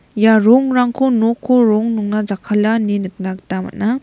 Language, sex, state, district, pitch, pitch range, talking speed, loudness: Garo, female, Meghalaya, West Garo Hills, 220 Hz, 205-240 Hz, 150 wpm, -15 LUFS